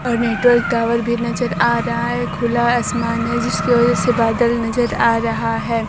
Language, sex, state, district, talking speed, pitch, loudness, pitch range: Hindi, male, Bihar, Kaimur, 195 wpm, 235 Hz, -17 LUFS, 230-240 Hz